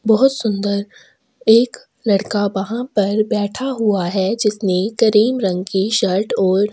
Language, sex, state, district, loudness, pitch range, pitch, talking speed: Hindi, female, Chhattisgarh, Sukma, -17 LUFS, 195-230 Hz, 210 Hz, 135 wpm